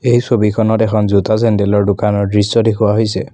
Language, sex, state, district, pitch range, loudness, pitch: Assamese, male, Assam, Kamrup Metropolitan, 105-110 Hz, -13 LUFS, 105 Hz